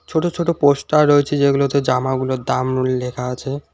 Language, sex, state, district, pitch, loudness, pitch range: Bengali, male, West Bengal, Alipurduar, 140 Hz, -18 LUFS, 130-145 Hz